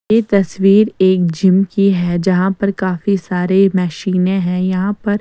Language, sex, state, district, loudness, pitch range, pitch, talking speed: Hindi, female, Bihar, West Champaran, -14 LUFS, 185-200 Hz, 190 Hz, 160 wpm